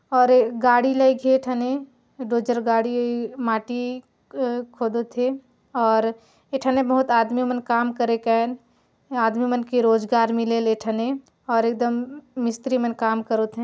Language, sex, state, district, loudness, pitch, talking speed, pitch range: Chhattisgarhi, female, Chhattisgarh, Jashpur, -22 LUFS, 240 Hz, 180 wpm, 230-255 Hz